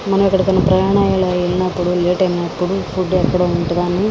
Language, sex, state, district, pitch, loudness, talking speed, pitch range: Telugu, female, Andhra Pradesh, Srikakulam, 185 Hz, -16 LUFS, 160 wpm, 175-190 Hz